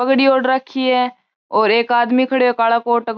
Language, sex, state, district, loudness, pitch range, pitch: Marwari, female, Rajasthan, Churu, -16 LUFS, 235-260 Hz, 250 Hz